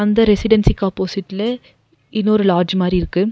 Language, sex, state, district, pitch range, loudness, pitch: Tamil, female, Tamil Nadu, Nilgiris, 190-215 Hz, -17 LUFS, 200 Hz